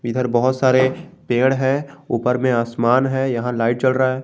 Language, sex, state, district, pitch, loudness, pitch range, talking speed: Hindi, male, Jharkhand, Garhwa, 130 Hz, -18 LUFS, 120-130 Hz, 195 wpm